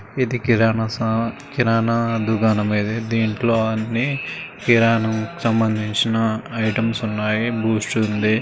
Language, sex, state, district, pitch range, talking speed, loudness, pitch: Telugu, male, Andhra Pradesh, Srikakulam, 110-115 Hz, 100 wpm, -20 LUFS, 110 Hz